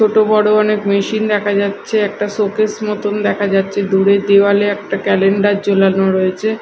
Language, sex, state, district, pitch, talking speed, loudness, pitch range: Bengali, female, Odisha, Malkangiri, 205 Hz, 155 wpm, -14 LUFS, 200-210 Hz